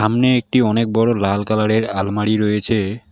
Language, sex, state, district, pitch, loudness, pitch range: Bengali, male, West Bengal, Alipurduar, 110 Hz, -17 LUFS, 105-115 Hz